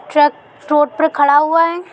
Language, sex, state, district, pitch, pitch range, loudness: Hindi, female, Bihar, Gopalganj, 300 Hz, 295-330 Hz, -14 LUFS